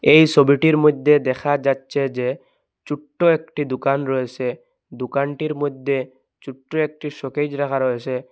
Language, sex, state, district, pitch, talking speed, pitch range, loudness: Bengali, male, Assam, Hailakandi, 140 Hz, 125 wpm, 130-150 Hz, -20 LUFS